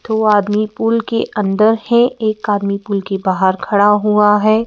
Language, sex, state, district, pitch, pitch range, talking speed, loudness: Hindi, female, Madhya Pradesh, Bhopal, 210 Hz, 200-220 Hz, 180 wpm, -14 LUFS